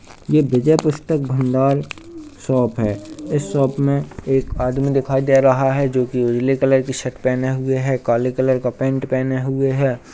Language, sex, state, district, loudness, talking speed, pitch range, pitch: Hindi, male, Uttarakhand, Uttarkashi, -18 LUFS, 185 wpm, 130-140 Hz, 135 Hz